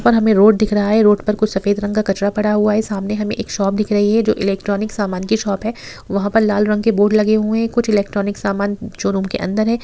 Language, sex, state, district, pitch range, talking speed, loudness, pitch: Hindi, female, Bihar, Sitamarhi, 200-215 Hz, 315 wpm, -17 LUFS, 210 Hz